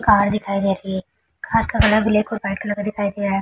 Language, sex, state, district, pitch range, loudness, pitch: Hindi, female, Chhattisgarh, Bilaspur, 195-210 Hz, -20 LUFS, 205 Hz